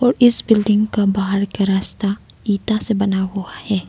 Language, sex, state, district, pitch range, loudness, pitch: Hindi, female, Arunachal Pradesh, Lower Dibang Valley, 195-215 Hz, -18 LUFS, 200 Hz